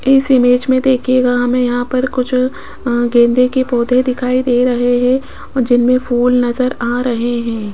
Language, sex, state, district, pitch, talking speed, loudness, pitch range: Hindi, female, Rajasthan, Jaipur, 250 Hz, 170 wpm, -14 LUFS, 245-255 Hz